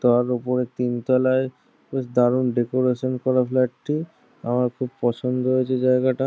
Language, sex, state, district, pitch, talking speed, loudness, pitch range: Bengali, male, West Bengal, Jhargram, 125 Hz, 145 wpm, -22 LUFS, 125-130 Hz